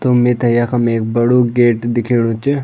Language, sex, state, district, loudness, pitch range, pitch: Garhwali, male, Uttarakhand, Tehri Garhwal, -14 LUFS, 120-125 Hz, 120 Hz